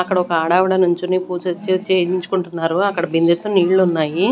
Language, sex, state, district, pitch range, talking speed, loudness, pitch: Telugu, female, Andhra Pradesh, Manyam, 170-185 Hz, 125 wpm, -17 LUFS, 180 Hz